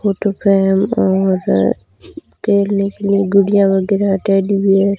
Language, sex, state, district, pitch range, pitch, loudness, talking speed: Hindi, female, Rajasthan, Jaisalmer, 195-200 Hz, 200 Hz, -15 LUFS, 130 wpm